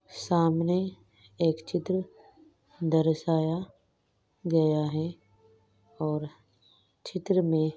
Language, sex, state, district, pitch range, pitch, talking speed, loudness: Hindi, female, Rajasthan, Nagaur, 120-175 Hz, 160 Hz, 70 wpm, -28 LUFS